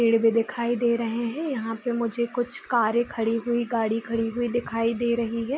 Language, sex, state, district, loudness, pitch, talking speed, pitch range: Hindi, female, Bihar, Gopalganj, -25 LUFS, 235 Hz, 215 wpm, 230-240 Hz